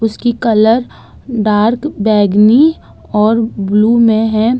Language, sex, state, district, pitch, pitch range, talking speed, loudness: Hindi, female, Uttar Pradesh, Budaun, 225 Hz, 215-235 Hz, 105 wpm, -12 LUFS